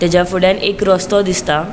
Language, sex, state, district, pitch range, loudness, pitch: Konkani, female, Goa, North and South Goa, 180-200 Hz, -14 LUFS, 185 Hz